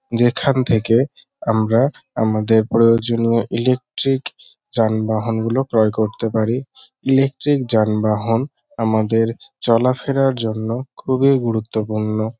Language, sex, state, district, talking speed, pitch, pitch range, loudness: Bengali, male, West Bengal, North 24 Parganas, 85 wpm, 115 Hz, 110-130 Hz, -18 LUFS